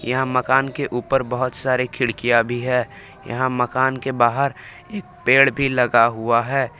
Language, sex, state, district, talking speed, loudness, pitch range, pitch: Hindi, male, Jharkhand, Palamu, 170 wpm, -19 LUFS, 120-135 Hz, 125 Hz